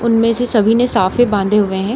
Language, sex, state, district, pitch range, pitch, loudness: Hindi, female, Bihar, Samastipur, 205-235 Hz, 225 Hz, -14 LUFS